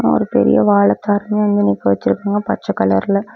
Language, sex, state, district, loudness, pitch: Tamil, female, Tamil Nadu, Namakkal, -15 LUFS, 200 Hz